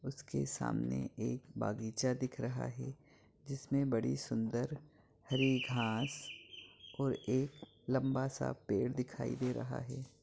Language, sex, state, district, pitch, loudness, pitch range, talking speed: Hindi, male, Chhattisgarh, Raigarh, 130 Hz, -38 LUFS, 115-135 Hz, 125 wpm